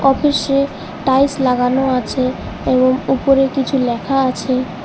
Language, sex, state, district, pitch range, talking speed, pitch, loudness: Bengali, female, West Bengal, Alipurduar, 255-275 Hz, 110 wpm, 265 Hz, -16 LUFS